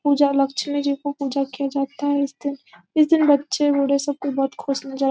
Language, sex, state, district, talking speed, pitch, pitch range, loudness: Hindi, female, Bihar, Gopalganj, 210 wpm, 280 Hz, 275-285 Hz, -21 LUFS